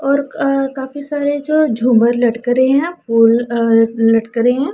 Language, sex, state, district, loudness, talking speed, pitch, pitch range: Hindi, female, Punjab, Pathankot, -14 LUFS, 190 wpm, 250 Hz, 230-280 Hz